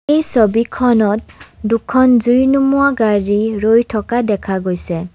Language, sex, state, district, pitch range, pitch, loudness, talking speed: Assamese, female, Assam, Kamrup Metropolitan, 210-250 Hz, 225 Hz, -14 LUFS, 115 wpm